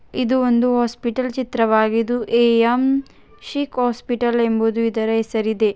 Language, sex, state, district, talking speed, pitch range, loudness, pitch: Kannada, female, Karnataka, Belgaum, 105 wpm, 225-250 Hz, -19 LUFS, 235 Hz